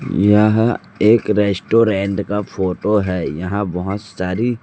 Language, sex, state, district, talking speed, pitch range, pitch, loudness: Hindi, male, Chhattisgarh, Raipur, 115 wpm, 95-110 Hz, 105 Hz, -17 LUFS